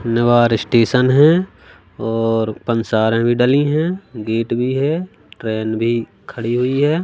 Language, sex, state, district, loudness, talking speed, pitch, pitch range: Hindi, male, Madhya Pradesh, Katni, -17 LUFS, 145 wpm, 120 Hz, 115-135 Hz